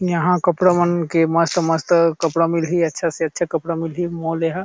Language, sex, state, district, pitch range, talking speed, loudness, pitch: Chhattisgarhi, male, Chhattisgarh, Sarguja, 165-175 Hz, 205 wpm, -19 LUFS, 170 Hz